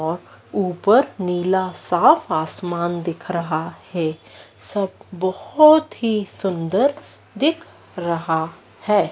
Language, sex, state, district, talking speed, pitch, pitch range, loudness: Hindi, female, Madhya Pradesh, Dhar, 100 wpm, 180 Hz, 165-205 Hz, -20 LUFS